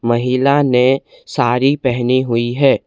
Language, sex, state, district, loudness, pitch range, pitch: Hindi, male, Assam, Kamrup Metropolitan, -15 LUFS, 120-135 Hz, 130 Hz